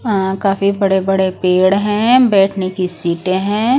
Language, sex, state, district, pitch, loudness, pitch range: Hindi, female, Punjab, Pathankot, 195 Hz, -14 LUFS, 185-205 Hz